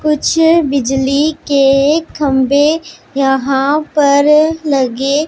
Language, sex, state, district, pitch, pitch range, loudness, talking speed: Hindi, female, Punjab, Pathankot, 285 Hz, 275-305 Hz, -12 LUFS, 80 wpm